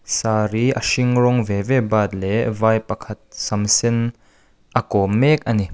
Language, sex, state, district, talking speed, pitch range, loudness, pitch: Mizo, male, Mizoram, Aizawl, 180 wpm, 105-120 Hz, -19 LUFS, 110 Hz